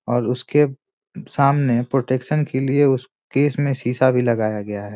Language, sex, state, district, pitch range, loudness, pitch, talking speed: Hindi, male, Bihar, Muzaffarpur, 120-140 Hz, -19 LUFS, 130 Hz, 170 wpm